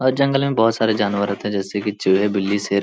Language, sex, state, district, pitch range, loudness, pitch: Hindi, male, Bihar, Jahanabad, 100-115 Hz, -19 LUFS, 105 Hz